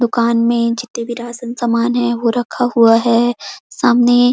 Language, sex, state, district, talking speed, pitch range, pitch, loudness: Hindi, female, Chhattisgarh, Korba, 165 wpm, 235-245 Hz, 240 Hz, -15 LUFS